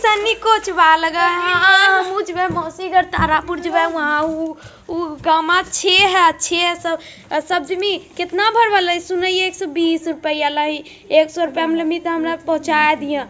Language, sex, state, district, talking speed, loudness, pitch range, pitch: Magahi, female, Bihar, Jamui, 160 wpm, -16 LUFS, 320-370 Hz, 345 Hz